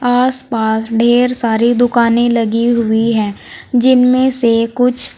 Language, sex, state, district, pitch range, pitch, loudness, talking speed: Hindi, female, Uttar Pradesh, Saharanpur, 230-250 Hz, 235 Hz, -13 LUFS, 115 wpm